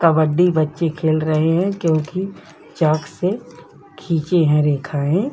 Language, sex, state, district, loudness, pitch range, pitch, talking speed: Hindi, female, Bihar, Vaishali, -18 LUFS, 155-175 Hz, 160 Hz, 125 wpm